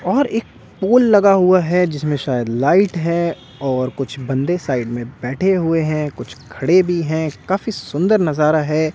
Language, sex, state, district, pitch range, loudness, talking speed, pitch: Hindi, male, Delhi, New Delhi, 135-185 Hz, -17 LUFS, 175 wpm, 160 Hz